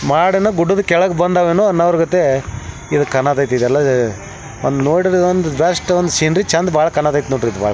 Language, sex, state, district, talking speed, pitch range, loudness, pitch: Kannada, male, Karnataka, Belgaum, 145 wpm, 135-180 Hz, -15 LUFS, 160 Hz